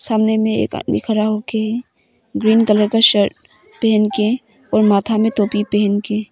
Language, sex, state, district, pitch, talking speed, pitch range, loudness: Hindi, female, Arunachal Pradesh, Papum Pare, 215 Hz, 180 wpm, 210-220 Hz, -16 LUFS